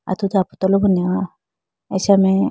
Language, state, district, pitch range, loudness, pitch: Idu Mishmi, Arunachal Pradesh, Lower Dibang Valley, 185-200 Hz, -18 LUFS, 190 Hz